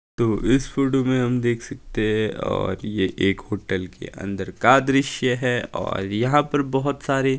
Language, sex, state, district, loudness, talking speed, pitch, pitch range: Hindi, male, Himachal Pradesh, Shimla, -22 LUFS, 180 wpm, 120 Hz, 105-135 Hz